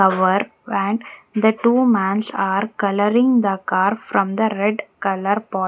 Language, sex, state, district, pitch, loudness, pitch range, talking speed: English, female, Haryana, Jhajjar, 205 Hz, -19 LUFS, 195-220 Hz, 160 wpm